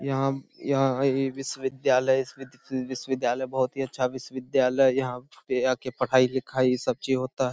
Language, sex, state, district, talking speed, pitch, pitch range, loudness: Hindi, male, Bihar, Saharsa, 150 wpm, 130 Hz, 130-135 Hz, -26 LUFS